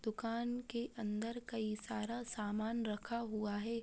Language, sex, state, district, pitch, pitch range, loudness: Hindi, female, Bihar, Saharsa, 230 Hz, 215-235 Hz, -41 LUFS